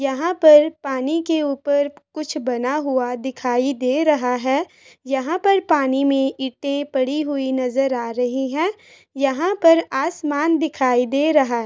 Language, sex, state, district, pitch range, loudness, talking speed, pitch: Hindi, female, Uttar Pradesh, Etah, 265-310 Hz, -19 LUFS, 155 wpm, 280 Hz